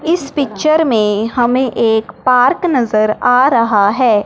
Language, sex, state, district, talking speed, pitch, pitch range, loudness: Hindi, male, Punjab, Fazilka, 140 wpm, 245 Hz, 215-275 Hz, -13 LUFS